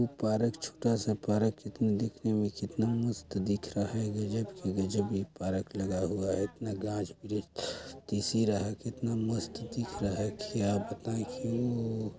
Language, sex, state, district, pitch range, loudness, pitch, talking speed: Hindi, male, Chhattisgarh, Balrampur, 100-115 Hz, -33 LUFS, 105 Hz, 180 wpm